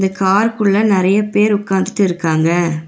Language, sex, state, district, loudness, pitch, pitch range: Tamil, female, Tamil Nadu, Nilgiris, -14 LUFS, 195 Hz, 175-205 Hz